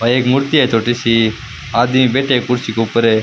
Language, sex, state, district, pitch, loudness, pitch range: Rajasthani, male, Rajasthan, Churu, 120 Hz, -14 LUFS, 115-125 Hz